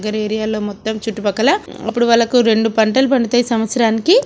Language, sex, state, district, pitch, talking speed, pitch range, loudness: Telugu, female, Andhra Pradesh, Srikakulam, 225 Hz, 125 wpm, 220-245 Hz, -16 LUFS